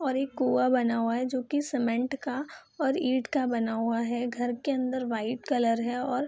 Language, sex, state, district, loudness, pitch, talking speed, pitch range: Hindi, female, Bihar, Gopalganj, -29 LUFS, 255 Hz, 230 wpm, 235-265 Hz